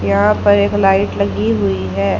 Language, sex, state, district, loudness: Hindi, female, Haryana, Charkhi Dadri, -14 LUFS